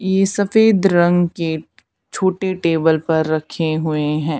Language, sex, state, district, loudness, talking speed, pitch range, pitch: Hindi, female, Haryana, Charkhi Dadri, -17 LUFS, 135 wpm, 155-190 Hz, 165 Hz